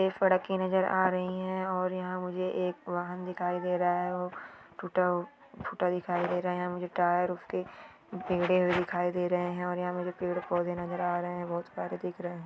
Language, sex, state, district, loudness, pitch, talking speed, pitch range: Marwari, female, Rajasthan, Churu, -31 LUFS, 180 Hz, 210 wpm, 175-185 Hz